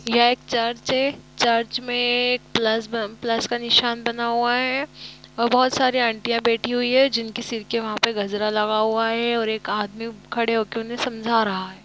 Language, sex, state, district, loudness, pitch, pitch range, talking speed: Hindi, female, Jharkhand, Jamtara, -22 LUFS, 235 Hz, 225-245 Hz, 190 wpm